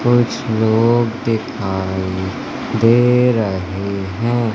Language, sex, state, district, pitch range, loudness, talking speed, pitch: Hindi, male, Madhya Pradesh, Katni, 95-120 Hz, -17 LUFS, 80 wpm, 110 Hz